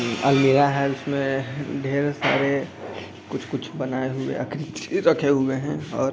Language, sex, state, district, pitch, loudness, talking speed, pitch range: Hindi, male, Bihar, East Champaran, 135 Hz, -23 LUFS, 135 wpm, 135-140 Hz